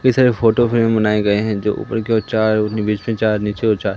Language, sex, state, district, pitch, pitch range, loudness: Hindi, male, Madhya Pradesh, Katni, 110 Hz, 105-115 Hz, -17 LUFS